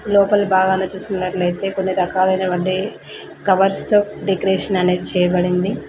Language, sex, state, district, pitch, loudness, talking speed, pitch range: Telugu, female, Telangana, Mahabubabad, 190 Hz, -18 LUFS, 110 wpm, 185-195 Hz